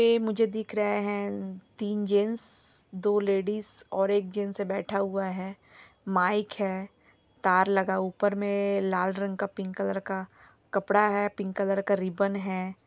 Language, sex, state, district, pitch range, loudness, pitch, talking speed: Hindi, female, Jharkhand, Sahebganj, 195-205 Hz, -28 LUFS, 200 Hz, 165 wpm